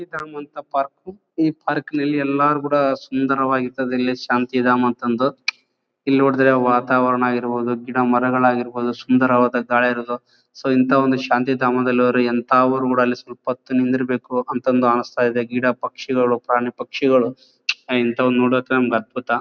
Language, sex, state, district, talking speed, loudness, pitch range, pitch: Kannada, male, Karnataka, Bellary, 145 wpm, -19 LUFS, 125-130 Hz, 125 Hz